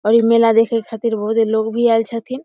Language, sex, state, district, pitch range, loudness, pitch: Maithili, female, Bihar, Samastipur, 225-230 Hz, -16 LUFS, 230 Hz